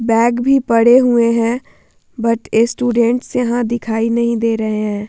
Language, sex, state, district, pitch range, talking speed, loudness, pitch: Hindi, female, Bihar, Vaishali, 230-240 Hz, 155 wpm, -15 LUFS, 235 Hz